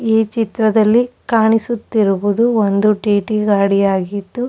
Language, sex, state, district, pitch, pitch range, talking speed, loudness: Kannada, female, Karnataka, Chamarajanagar, 215 Hz, 205-225 Hz, 105 wpm, -15 LUFS